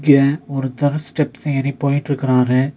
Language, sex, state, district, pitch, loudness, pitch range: Tamil, male, Tamil Nadu, Nilgiris, 140 Hz, -18 LUFS, 135-145 Hz